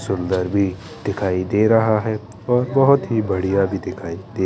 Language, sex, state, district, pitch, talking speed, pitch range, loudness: Hindi, male, Bihar, Kaimur, 100 Hz, 175 wpm, 95-110 Hz, -19 LUFS